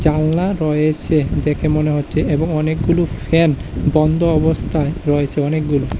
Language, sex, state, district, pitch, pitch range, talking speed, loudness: Bengali, male, Tripura, West Tripura, 155 Hz, 150-160 Hz, 110 wpm, -17 LUFS